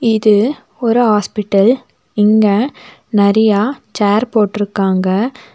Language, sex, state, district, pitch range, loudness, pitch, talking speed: Tamil, female, Tamil Nadu, Nilgiris, 205-235 Hz, -14 LUFS, 215 Hz, 75 wpm